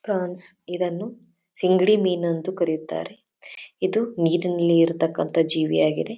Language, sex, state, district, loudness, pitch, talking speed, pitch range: Kannada, female, Karnataka, Dharwad, -22 LUFS, 175 Hz, 95 wpm, 165-185 Hz